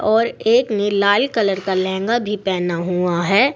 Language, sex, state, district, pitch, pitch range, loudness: Hindi, female, Uttar Pradesh, Saharanpur, 200 Hz, 190-225 Hz, -18 LUFS